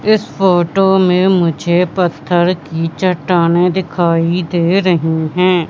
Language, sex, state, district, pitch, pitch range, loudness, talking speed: Hindi, female, Madhya Pradesh, Katni, 175 Hz, 170-185 Hz, -13 LUFS, 115 wpm